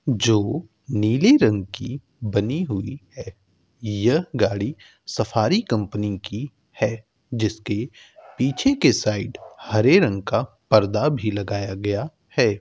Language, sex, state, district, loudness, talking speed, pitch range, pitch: Hindi, male, Uttar Pradesh, Hamirpur, -22 LUFS, 120 wpm, 105-130 Hz, 110 Hz